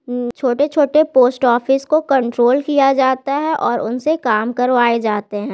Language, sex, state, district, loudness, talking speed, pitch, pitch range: Hindi, female, Bihar, Gaya, -16 LUFS, 160 wpm, 260 Hz, 240-285 Hz